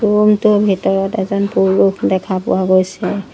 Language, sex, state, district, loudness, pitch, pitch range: Assamese, female, Assam, Sonitpur, -15 LUFS, 195 Hz, 185-210 Hz